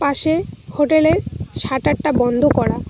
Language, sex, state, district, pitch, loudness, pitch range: Bengali, female, West Bengal, Cooch Behar, 290 Hz, -17 LUFS, 250-310 Hz